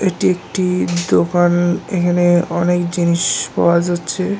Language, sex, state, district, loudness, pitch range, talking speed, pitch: Bengali, male, West Bengal, North 24 Parganas, -16 LUFS, 170-180 Hz, 110 wpm, 175 Hz